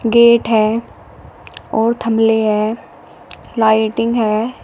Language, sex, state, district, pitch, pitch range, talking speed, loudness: Hindi, female, Uttar Pradesh, Shamli, 225 Hz, 220-230 Hz, 90 wpm, -15 LUFS